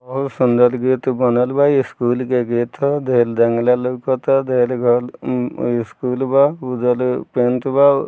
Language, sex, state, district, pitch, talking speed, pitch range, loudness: Bhojpuri, male, Bihar, Muzaffarpur, 125 Hz, 155 wpm, 125-135 Hz, -17 LUFS